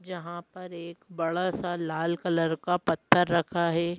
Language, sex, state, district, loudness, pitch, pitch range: Hindi, female, Madhya Pradesh, Bhopal, -27 LUFS, 170 Hz, 170-180 Hz